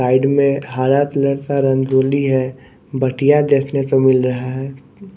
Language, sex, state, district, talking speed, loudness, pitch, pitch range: Hindi, male, Odisha, Nuapada, 150 wpm, -16 LUFS, 135 Hz, 130-140 Hz